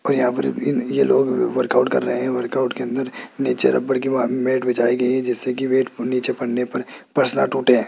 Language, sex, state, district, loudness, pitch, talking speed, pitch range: Hindi, male, Rajasthan, Jaipur, -20 LUFS, 125 Hz, 215 wpm, 125-130 Hz